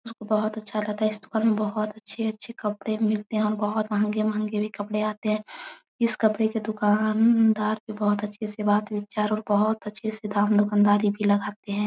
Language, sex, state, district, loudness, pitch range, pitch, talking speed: Hindi, female, Bihar, Araria, -25 LUFS, 210-220 Hz, 215 Hz, 205 wpm